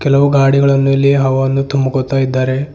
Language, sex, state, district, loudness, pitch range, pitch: Kannada, male, Karnataka, Bidar, -13 LUFS, 135-140 Hz, 135 Hz